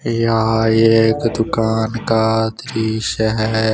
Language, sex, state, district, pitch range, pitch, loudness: Hindi, male, Jharkhand, Deoghar, 110-115 Hz, 110 Hz, -16 LUFS